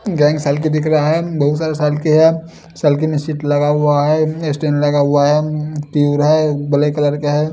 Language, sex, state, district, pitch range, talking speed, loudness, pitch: Hindi, male, Bihar, Katihar, 145-155 Hz, 205 wpm, -15 LUFS, 150 Hz